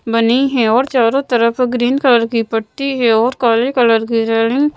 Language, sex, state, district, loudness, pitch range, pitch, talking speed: Hindi, female, Madhya Pradesh, Bhopal, -14 LUFS, 230-255 Hz, 235 Hz, 200 wpm